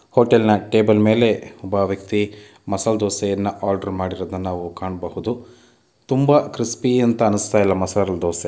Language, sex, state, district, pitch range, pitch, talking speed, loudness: Kannada, male, Karnataka, Mysore, 95-115 Hz, 105 Hz, 125 wpm, -19 LUFS